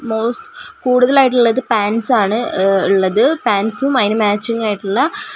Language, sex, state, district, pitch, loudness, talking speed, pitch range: Malayalam, female, Kerala, Wayanad, 230 Hz, -15 LUFS, 125 wpm, 210-260 Hz